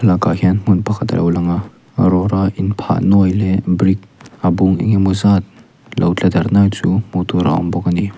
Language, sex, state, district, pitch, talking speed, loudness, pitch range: Mizo, male, Mizoram, Aizawl, 95 Hz, 220 wpm, -15 LUFS, 90-100 Hz